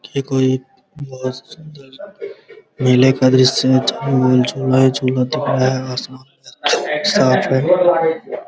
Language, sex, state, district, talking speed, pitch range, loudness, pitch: Hindi, male, Bihar, Araria, 165 wpm, 130-155 Hz, -16 LUFS, 130 Hz